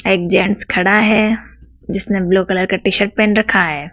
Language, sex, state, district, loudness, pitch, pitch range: Hindi, female, Madhya Pradesh, Dhar, -14 LUFS, 195 Hz, 190-215 Hz